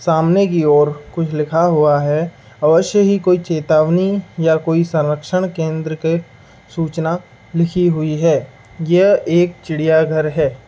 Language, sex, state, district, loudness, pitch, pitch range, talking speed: Hindi, male, Bihar, Saharsa, -16 LUFS, 160 Hz, 155-175 Hz, 140 wpm